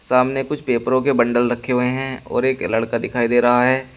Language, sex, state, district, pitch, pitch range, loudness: Hindi, male, Uttar Pradesh, Shamli, 125 Hz, 120-130 Hz, -19 LUFS